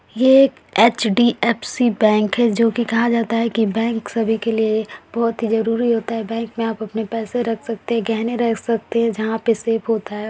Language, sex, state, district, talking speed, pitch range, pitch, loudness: Hindi, female, Uttar Pradesh, Varanasi, 215 wpm, 225-235 Hz, 230 Hz, -19 LUFS